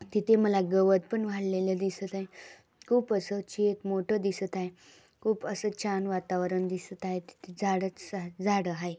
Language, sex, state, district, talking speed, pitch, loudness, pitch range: Marathi, female, Maharashtra, Dhule, 155 wpm, 195 Hz, -30 LUFS, 185-205 Hz